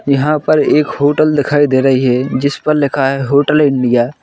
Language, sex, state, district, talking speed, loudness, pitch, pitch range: Hindi, male, Chhattisgarh, Korba, 210 wpm, -12 LUFS, 140 Hz, 135-145 Hz